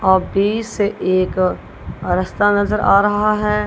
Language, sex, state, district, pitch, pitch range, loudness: Hindi, female, Punjab, Kapurthala, 205 Hz, 185-210 Hz, -17 LUFS